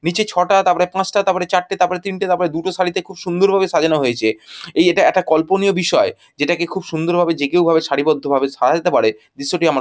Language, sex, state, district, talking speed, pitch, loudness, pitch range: Bengali, male, West Bengal, Jhargram, 195 wpm, 180 Hz, -17 LUFS, 160-190 Hz